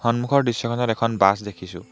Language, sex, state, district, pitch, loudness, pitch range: Assamese, male, Assam, Hailakandi, 115 Hz, -21 LUFS, 100-120 Hz